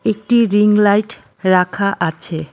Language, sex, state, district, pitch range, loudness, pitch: Bengali, female, West Bengal, Cooch Behar, 180-215 Hz, -15 LUFS, 205 Hz